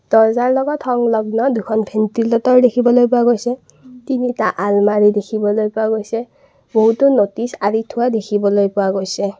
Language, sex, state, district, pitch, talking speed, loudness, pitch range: Assamese, female, Assam, Kamrup Metropolitan, 225 Hz, 130 wpm, -16 LUFS, 210-245 Hz